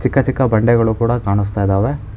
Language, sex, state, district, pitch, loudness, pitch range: Kannada, male, Karnataka, Bangalore, 115 Hz, -16 LUFS, 105-130 Hz